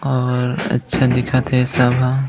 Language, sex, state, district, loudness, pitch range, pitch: Chhattisgarhi, male, Chhattisgarh, Raigarh, -17 LUFS, 125-135 Hz, 130 Hz